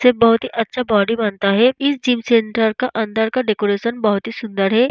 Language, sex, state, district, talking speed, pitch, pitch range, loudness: Hindi, female, Bihar, Vaishali, 205 wpm, 230 Hz, 215-245 Hz, -17 LUFS